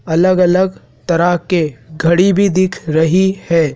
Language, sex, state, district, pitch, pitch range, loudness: Hindi, male, Madhya Pradesh, Dhar, 175 Hz, 160-185 Hz, -14 LUFS